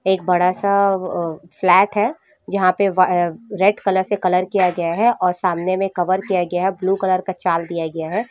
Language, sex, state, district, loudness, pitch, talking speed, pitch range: Hindi, female, Jharkhand, Jamtara, -18 LUFS, 185 Hz, 200 wpm, 180-200 Hz